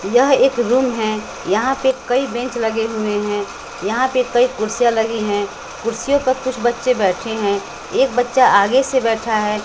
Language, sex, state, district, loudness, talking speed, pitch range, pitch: Hindi, female, Bihar, West Champaran, -17 LUFS, 180 wpm, 215-255 Hz, 235 Hz